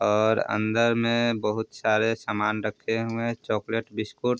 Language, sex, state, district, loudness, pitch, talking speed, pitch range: Hindi, male, Bihar, Vaishali, -26 LUFS, 110 Hz, 165 wpm, 105-115 Hz